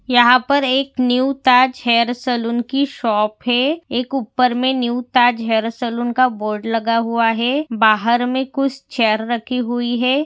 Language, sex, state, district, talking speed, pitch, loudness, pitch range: Hindi, female, Maharashtra, Pune, 170 wpm, 245 Hz, -17 LUFS, 230-260 Hz